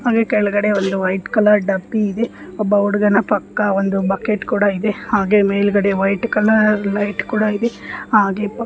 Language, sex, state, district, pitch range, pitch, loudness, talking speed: Kannada, female, Karnataka, Dharwad, 200-215 Hz, 205 Hz, -17 LUFS, 160 wpm